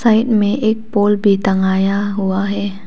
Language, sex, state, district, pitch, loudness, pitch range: Hindi, female, Arunachal Pradesh, Papum Pare, 205 Hz, -15 LUFS, 195-215 Hz